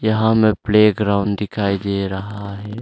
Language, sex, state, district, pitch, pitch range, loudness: Hindi, male, Arunachal Pradesh, Longding, 105 Hz, 100-110 Hz, -18 LUFS